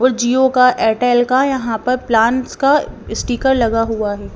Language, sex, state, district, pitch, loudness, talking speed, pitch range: Hindi, female, Punjab, Kapurthala, 245 Hz, -15 LUFS, 180 wpm, 225-260 Hz